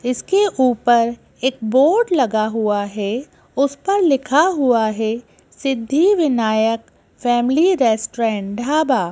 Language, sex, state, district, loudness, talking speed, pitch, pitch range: Hindi, female, Madhya Pradesh, Bhopal, -18 LUFS, 120 wpm, 245 Hz, 225-290 Hz